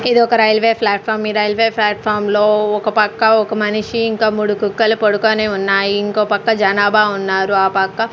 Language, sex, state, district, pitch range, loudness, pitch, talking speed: Telugu, female, Andhra Pradesh, Sri Satya Sai, 205-220 Hz, -15 LUFS, 210 Hz, 175 wpm